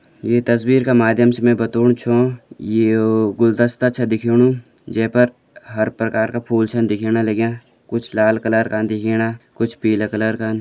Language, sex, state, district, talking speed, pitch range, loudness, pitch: Garhwali, male, Uttarakhand, Uttarkashi, 170 wpm, 110-120 Hz, -17 LUFS, 115 Hz